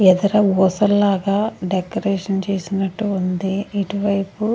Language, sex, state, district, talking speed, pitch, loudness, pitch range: Telugu, female, Andhra Pradesh, Sri Satya Sai, 105 wpm, 195 Hz, -19 LUFS, 190-205 Hz